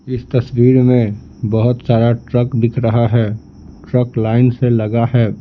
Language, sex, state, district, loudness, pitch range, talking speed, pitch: Hindi, male, Bihar, Patna, -15 LUFS, 115-125 Hz, 155 wpm, 120 Hz